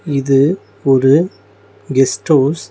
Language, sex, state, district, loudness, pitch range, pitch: Tamil, male, Tamil Nadu, Nilgiris, -14 LUFS, 130-150 Hz, 135 Hz